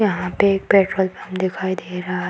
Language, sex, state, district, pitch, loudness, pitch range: Hindi, female, Bihar, Samastipur, 185 Hz, -20 LUFS, 180-195 Hz